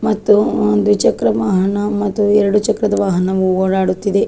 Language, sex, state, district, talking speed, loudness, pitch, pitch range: Kannada, female, Karnataka, Dakshina Kannada, 125 wpm, -15 LUFS, 200 Hz, 185-210 Hz